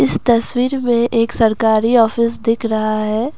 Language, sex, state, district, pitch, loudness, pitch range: Hindi, female, Assam, Kamrup Metropolitan, 230 Hz, -15 LUFS, 220-235 Hz